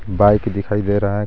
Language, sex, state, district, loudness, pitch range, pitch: Hindi, male, Jharkhand, Garhwa, -17 LUFS, 100-105 Hz, 105 Hz